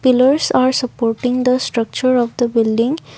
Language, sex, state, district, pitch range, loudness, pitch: English, female, Assam, Kamrup Metropolitan, 235-255 Hz, -16 LUFS, 250 Hz